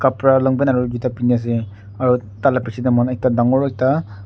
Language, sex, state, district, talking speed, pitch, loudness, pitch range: Nagamese, male, Nagaland, Kohima, 200 wpm, 125 Hz, -18 LUFS, 120-130 Hz